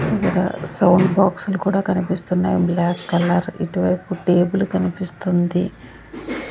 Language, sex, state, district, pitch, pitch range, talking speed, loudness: Telugu, female, Andhra Pradesh, Sri Satya Sai, 180 Hz, 175-190 Hz, 85 wpm, -19 LUFS